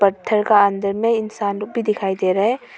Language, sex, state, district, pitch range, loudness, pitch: Hindi, female, Arunachal Pradesh, Papum Pare, 200-220 Hz, -19 LUFS, 205 Hz